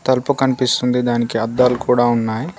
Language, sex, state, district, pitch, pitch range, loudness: Telugu, male, Telangana, Komaram Bheem, 125 Hz, 120-130 Hz, -17 LUFS